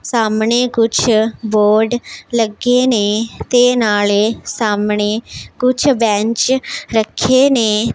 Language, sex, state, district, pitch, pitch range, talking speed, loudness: Punjabi, female, Punjab, Pathankot, 225 Hz, 215-245 Hz, 90 wpm, -14 LUFS